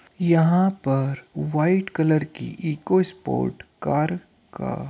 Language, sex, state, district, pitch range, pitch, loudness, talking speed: Hindi, male, Uttar Pradesh, Hamirpur, 145-180 Hz, 160 Hz, -23 LUFS, 110 wpm